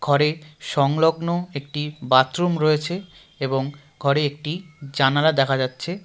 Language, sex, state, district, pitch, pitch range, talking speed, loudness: Bengali, male, West Bengal, Darjeeling, 150 Hz, 140-160 Hz, 110 wpm, -22 LUFS